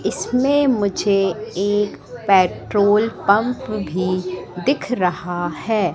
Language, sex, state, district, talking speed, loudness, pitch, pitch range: Hindi, female, Madhya Pradesh, Katni, 90 wpm, -19 LUFS, 205 Hz, 185-225 Hz